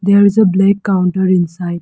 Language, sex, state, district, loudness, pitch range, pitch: English, female, Arunachal Pradesh, Lower Dibang Valley, -13 LUFS, 180-200 Hz, 190 Hz